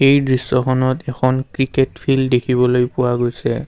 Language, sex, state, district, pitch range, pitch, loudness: Assamese, male, Assam, Kamrup Metropolitan, 125-135 Hz, 130 Hz, -17 LUFS